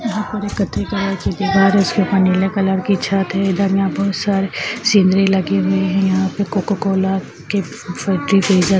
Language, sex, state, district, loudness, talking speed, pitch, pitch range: Hindi, female, Uttar Pradesh, Jyotiba Phule Nagar, -17 LUFS, 165 wpm, 195 Hz, 190-200 Hz